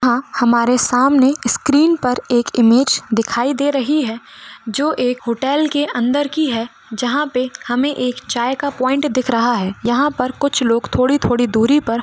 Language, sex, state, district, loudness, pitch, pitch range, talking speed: Hindi, female, Goa, North and South Goa, -16 LUFS, 250 Hz, 240-285 Hz, 180 wpm